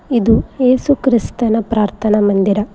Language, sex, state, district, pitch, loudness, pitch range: Kannada, female, Karnataka, Koppal, 225 Hz, -14 LUFS, 210-250 Hz